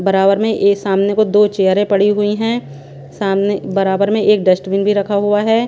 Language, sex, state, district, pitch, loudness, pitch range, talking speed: Hindi, female, Punjab, Pathankot, 200 Hz, -14 LUFS, 195-210 Hz, 200 wpm